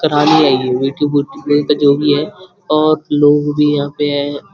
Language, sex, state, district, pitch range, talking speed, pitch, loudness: Hindi, male, Uttarakhand, Uttarkashi, 145-155 Hz, 90 wpm, 145 Hz, -13 LUFS